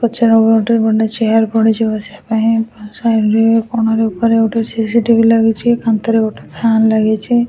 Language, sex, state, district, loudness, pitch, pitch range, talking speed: Odia, female, Odisha, Khordha, -13 LUFS, 225 Hz, 220-230 Hz, 145 wpm